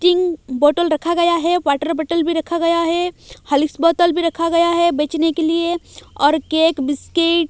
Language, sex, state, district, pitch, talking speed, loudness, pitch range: Hindi, female, Odisha, Malkangiri, 335 Hz, 190 wpm, -17 LUFS, 315-340 Hz